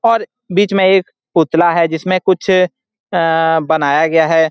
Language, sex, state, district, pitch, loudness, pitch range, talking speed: Hindi, male, Bihar, Saran, 180 Hz, -14 LUFS, 165-195 Hz, 185 wpm